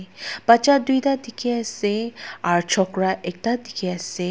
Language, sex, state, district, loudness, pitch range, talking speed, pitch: Nagamese, female, Nagaland, Dimapur, -22 LUFS, 185-240 Hz, 110 wpm, 220 Hz